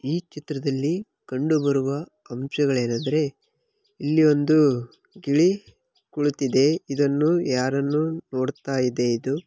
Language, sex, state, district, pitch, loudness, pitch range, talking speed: Kannada, male, Karnataka, Bellary, 145 Hz, -23 LUFS, 135-155 Hz, 95 wpm